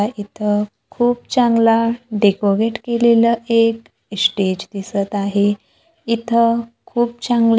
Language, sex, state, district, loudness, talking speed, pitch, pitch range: Marathi, female, Maharashtra, Gondia, -17 LUFS, 95 wpm, 230 Hz, 205-235 Hz